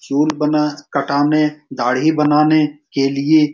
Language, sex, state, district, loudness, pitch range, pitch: Hindi, male, Bihar, Saran, -16 LUFS, 140-150 Hz, 150 Hz